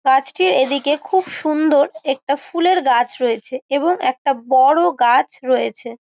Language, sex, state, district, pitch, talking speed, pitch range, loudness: Bengali, female, West Bengal, Malda, 275 Hz, 130 wpm, 250-305 Hz, -17 LUFS